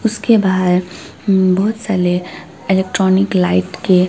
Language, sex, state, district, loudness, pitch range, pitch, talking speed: Hindi, female, West Bengal, Alipurduar, -15 LUFS, 180-195 Hz, 185 Hz, 105 wpm